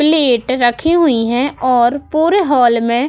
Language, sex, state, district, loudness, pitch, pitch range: Hindi, female, Uttar Pradesh, Budaun, -13 LUFS, 260 Hz, 240-310 Hz